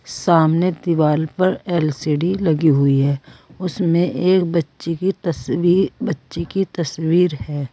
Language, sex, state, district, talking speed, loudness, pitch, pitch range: Hindi, female, Uttar Pradesh, Saharanpur, 125 wpm, -19 LUFS, 170 Hz, 155-180 Hz